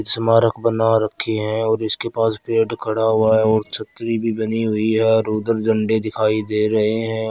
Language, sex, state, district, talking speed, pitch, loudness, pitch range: Marwari, male, Rajasthan, Churu, 190 wpm, 110 Hz, -19 LUFS, 110-115 Hz